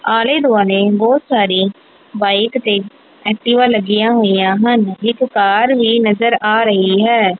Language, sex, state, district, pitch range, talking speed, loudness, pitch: Punjabi, female, Punjab, Kapurthala, 205-235 Hz, 140 wpm, -13 LUFS, 220 Hz